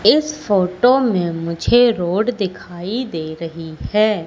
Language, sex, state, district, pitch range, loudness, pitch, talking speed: Hindi, female, Madhya Pradesh, Katni, 170-240 Hz, -18 LUFS, 190 Hz, 125 wpm